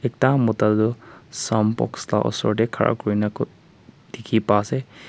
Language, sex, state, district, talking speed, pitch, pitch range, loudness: Nagamese, male, Nagaland, Kohima, 140 wpm, 110 Hz, 105-125 Hz, -22 LUFS